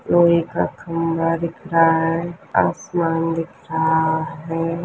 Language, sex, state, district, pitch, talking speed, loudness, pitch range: Hindi, female, Chhattisgarh, Balrampur, 165 Hz, 125 wpm, -20 LUFS, 165-170 Hz